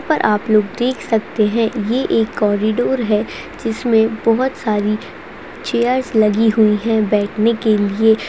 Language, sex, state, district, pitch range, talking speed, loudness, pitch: Hindi, female, Bihar, Jamui, 215-230 Hz, 145 wpm, -16 LUFS, 220 Hz